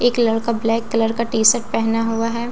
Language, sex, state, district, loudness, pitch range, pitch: Hindi, female, Bihar, Katihar, -18 LUFS, 225-235 Hz, 230 Hz